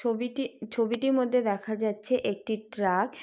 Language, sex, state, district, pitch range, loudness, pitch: Bengali, female, West Bengal, Jalpaiguri, 215-250 Hz, -29 LUFS, 230 Hz